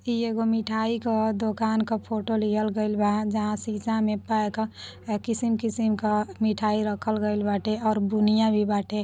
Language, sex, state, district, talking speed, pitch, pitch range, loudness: Bhojpuri, female, Uttar Pradesh, Deoria, 160 wpm, 215 Hz, 210-220 Hz, -26 LUFS